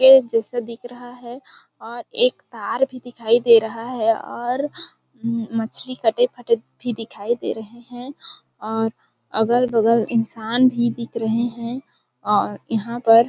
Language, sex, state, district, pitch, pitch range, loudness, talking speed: Hindi, female, Chhattisgarh, Balrampur, 235 Hz, 225-245 Hz, -21 LUFS, 150 wpm